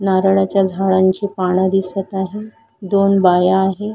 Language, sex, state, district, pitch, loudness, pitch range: Marathi, female, Maharashtra, Solapur, 195 Hz, -16 LUFS, 190-195 Hz